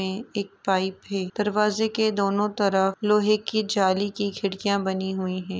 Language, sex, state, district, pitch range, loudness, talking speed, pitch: Hindi, female, Uttar Pradesh, Etah, 190-210 Hz, -24 LUFS, 170 wpm, 200 Hz